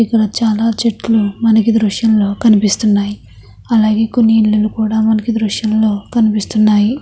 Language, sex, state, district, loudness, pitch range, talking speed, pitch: Telugu, female, Andhra Pradesh, Krishna, -13 LUFS, 210-225 Hz, 160 wpm, 220 Hz